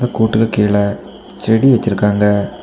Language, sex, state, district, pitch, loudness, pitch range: Tamil, male, Tamil Nadu, Kanyakumari, 105 Hz, -14 LUFS, 105-115 Hz